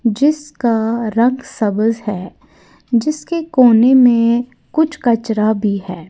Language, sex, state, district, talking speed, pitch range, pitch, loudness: Hindi, female, Uttar Pradesh, Lalitpur, 100 wpm, 220-265 Hz, 235 Hz, -15 LUFS